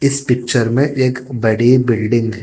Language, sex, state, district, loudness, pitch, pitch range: Hindi, male, Telangana, Hyderabad, -15 LUFS, 125 Hz, 115-130 Hz